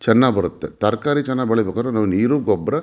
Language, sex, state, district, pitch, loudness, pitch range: Kannada, male, Karnataka, Mysore, 115 Hz, -19 LUFS, 105-130 Hz